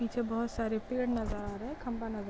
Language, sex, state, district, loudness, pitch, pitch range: Hindi, female, Chhattisgarh, Korba, -35 LUFS, 230 Hz, 220-240 Hz